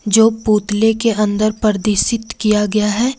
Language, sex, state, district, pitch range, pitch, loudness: Hindi, female, Jharkhand, Ranchi, 210-225 Hz, 215 Hz, -15 LUFS